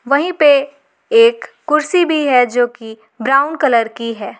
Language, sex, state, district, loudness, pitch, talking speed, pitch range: Hindi, female, Jharkhand, Garhwa, -14 LUFS, 275 Hz, 165 wpm, 235-305 Hz